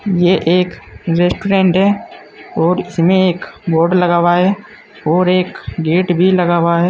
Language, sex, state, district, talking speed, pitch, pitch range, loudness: Hindi, male, Uttar Pradesh, Saharanpur, 155 wpm, 180 Hz, 170-185 Hz, -14 LUFS